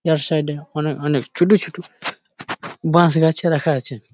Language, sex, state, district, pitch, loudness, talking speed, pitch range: Bengali, male, West Bengal, Jalpaiguri, 160 Hz, -18 LUFS, 175 wpm, 145-170 Hz